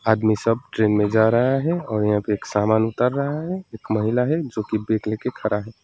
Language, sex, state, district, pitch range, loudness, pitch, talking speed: Hindi, male, West Bengal, Alipurduar, 110-125 Hz, -21 LUFS, 110 Hz, 245 wpm